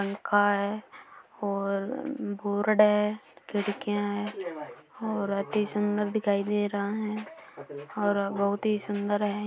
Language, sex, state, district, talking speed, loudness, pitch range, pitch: Marwari, female, Rajasthan, Churu, 125 wpm, -29 LUFS, 200-210 Hz, 205 Hz